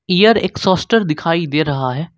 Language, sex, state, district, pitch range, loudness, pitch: Hindi, male, Jharkhand, Ranchi, 155-190 Hz, -15 LUFS, 170 Hz